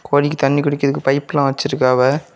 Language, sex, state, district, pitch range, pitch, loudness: Tamil, male, Tamil Nadu, Kanyakumari, 135-145 Hz, 140 Hz, -17 LUFS